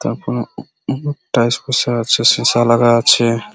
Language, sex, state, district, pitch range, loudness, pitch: Bengali, male, West Bengal, Purulia, 115-130 Hz, -15 LUFS, 120 Hz